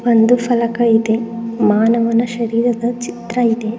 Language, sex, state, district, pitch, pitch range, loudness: Kannada, female, Karnataka, Dharwad, 230 Hz, 225-240 Hz, -16 LUFS